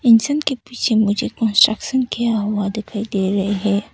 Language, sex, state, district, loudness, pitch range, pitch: Hindi, female, Arunachal Pradesh, Papum Pare, -18 LUFS, 205-235 Hz, 215 Hz